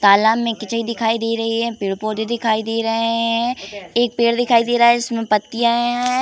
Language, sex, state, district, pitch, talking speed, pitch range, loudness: Hindi, female, Uttar Pradesh, Jalaun, 230 Hz, 200 wpm, 220-235 Hz, -18 LUFS